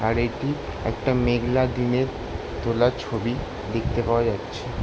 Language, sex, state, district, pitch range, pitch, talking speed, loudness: Bengali, male, West Bengal, Jalpaiguri, 110-125 Hz, 120 Hz, 125 wpm, -25 LUFS